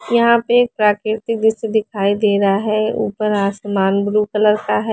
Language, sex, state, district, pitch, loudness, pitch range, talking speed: Hindi, female, Haryana, Charkhi Dadri, 210 Hz, -16 LUFS, 205-220 Hz, 170 wpm